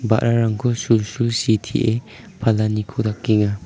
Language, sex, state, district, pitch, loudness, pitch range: Garo, male, Meghalaya, South Garo Hills, 110 Hz, -20 LUFS, 110-115 Hz